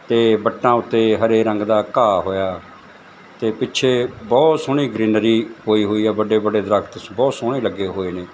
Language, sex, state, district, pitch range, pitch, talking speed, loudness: Punjabi, male, Punjab, Fazilka, 105-115 Hz, 110 Hz, 160 wpm, -18 LUFS